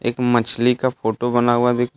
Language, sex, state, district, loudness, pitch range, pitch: Hindi, male, Jharkhand, Deoghar, -19 LUFS, 120-125 Hz, 120 Hz